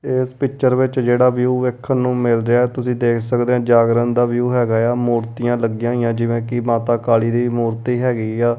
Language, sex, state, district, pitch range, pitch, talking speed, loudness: Punjabi, male, Punjab, Kapurthala, 115-125 Hz, 120 Hz, 200 wpm, -17 LUFS